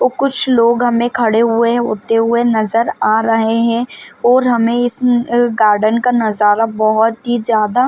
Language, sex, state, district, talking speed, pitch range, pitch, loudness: Hindi, female, Maharashtra, Chandrapur, 160 wpm, 225-240 Hz, 235 Hz, -14 LUFS